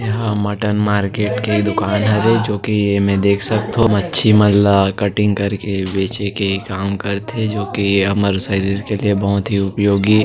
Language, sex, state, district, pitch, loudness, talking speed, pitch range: Chhattisgarhi, male, Chhattisgarh, Sarguja, 100 Hz, -16 LUFS, 165 wpm, 100-105 Hz